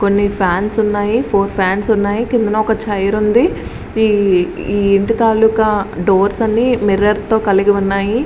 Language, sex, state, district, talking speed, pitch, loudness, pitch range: Telugu, female, Andhra Pradesh, Srikakulam, 130 wpm, 205 Hz, -14 LUFS, 200-220 Hz